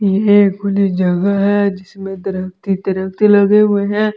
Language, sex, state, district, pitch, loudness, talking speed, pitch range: Hindi, female, Delhi, New Delhi, 200 Hz, -14 LUFS, 160 wpm, 190-205 Hz